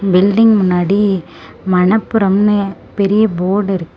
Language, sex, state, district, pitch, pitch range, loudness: Tamil, female, Tamil Nadu, Namakkal, 195 Hz, 185-210 Hz, -13 LUFS